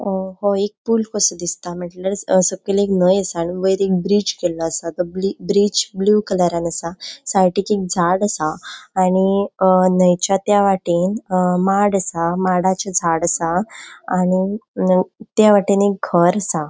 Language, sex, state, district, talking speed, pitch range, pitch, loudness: Konkani, female, Goa, North and South Goa, 150 wpm, 180-200 Hz, 190 Hz, -17 LUFS